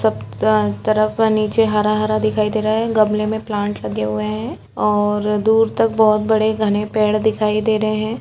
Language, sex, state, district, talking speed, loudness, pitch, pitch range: Hindi, female, Chhattisgarh, Kabirdham, 190 wpm, -17 LUFS, 215 Hz, 210-220 Hz